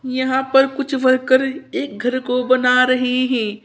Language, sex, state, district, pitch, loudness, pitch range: Hindi, female, Uttar Pradesh, Saharanpur, 255 Hz, -17 LUFS, 250-265 Hz